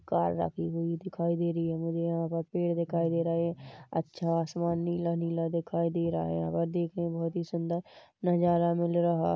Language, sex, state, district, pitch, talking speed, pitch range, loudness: Hindi, male, Chhattisgarh, Rajnandgaon, 170 Hz, 205 wpm, 165-170 Hz, -31 LUFS